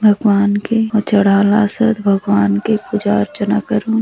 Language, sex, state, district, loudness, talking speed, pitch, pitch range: Halbi, female, Chhattisgarh, Bastar, -15 LUFS, 150 wpm, 205 Hz, 200-215 Hz